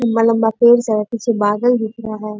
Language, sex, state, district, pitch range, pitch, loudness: Hindi, female, Bihar, Bhagalpur, 215-235 Hz, 225 Hz, -16 LUFS